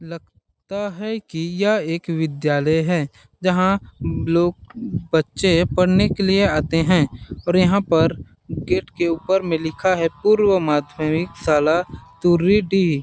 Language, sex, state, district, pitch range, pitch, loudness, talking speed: Hindi, male, Chhattisgarh, Balrampur, 160-190 Hz, 170 Hz, -19 LUFS, 140 wpm